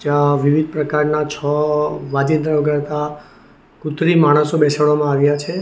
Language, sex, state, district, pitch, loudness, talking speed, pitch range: Gujarati, male, Gujarat, Valsad, 150 Hz, -16 LUFS, 120 wpm, 145-150 Hz